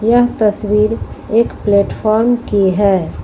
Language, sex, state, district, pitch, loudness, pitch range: Hindi, female, Uttar Pradesh, Lucknow, 210 Hz, -14 LUFS, 200-230 Hz